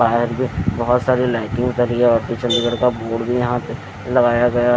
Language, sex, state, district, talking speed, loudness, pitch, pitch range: Hindi, male, Chandigarh, Chandigarh, 200 wpm, -18 LUFS, 120 Hz, 115-125 Hz